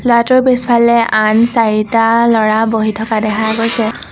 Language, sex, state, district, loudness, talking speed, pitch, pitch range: Assamese, female, Assam, Sonitpur, -12 LUFS, 130 wpm, 225 Hz, 220-235 Hz